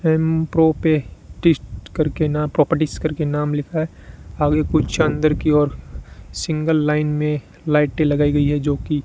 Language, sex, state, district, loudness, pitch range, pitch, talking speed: Hindi, male, Rajasthan, Bikaner, -19 LUFS, 145-155 Hz, 150 Hz, 160 wpm